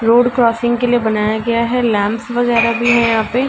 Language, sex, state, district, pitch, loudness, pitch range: Hindi, female, Uttar Pradesh, Ghazipur, 235 Hz, -14 LUFS, 225-240 Hz